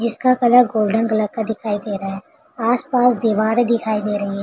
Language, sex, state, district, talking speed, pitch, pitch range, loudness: Hindi, female, Bihar, Begusarai, 205 wpm, 225 Hz, 210-240 Hz, -18 LUFS